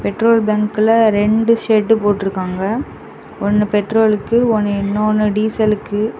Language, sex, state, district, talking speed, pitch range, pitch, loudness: Tamil, female, Tamil Nadu, Kanyakumari, 105 wpm, 205-225 Hz, 215 Hz, -15 LUFS